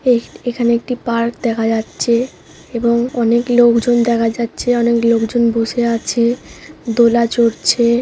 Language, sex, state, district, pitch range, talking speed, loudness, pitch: Bengali, female, West Bengal, Jhargram, 230-240 Hz, 135 wpm, -15 LUFS, 235 Hz